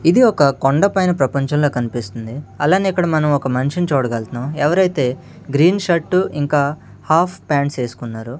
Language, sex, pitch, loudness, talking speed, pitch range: Telugu, male, 145 Hz, -17 LUFS, 130 wpm, 130-170 Hz